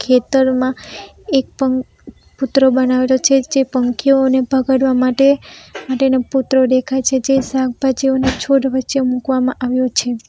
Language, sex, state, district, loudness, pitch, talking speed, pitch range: Gujarati, female, Gujarat, Valsad, -15 LUFS, 260 Hz, 120 wpm, 255-270 Hz